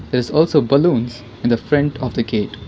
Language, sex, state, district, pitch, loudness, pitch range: English, female, Karnataka, Bangalore, 120 Hz, -17 LUFS, 115-145 Hz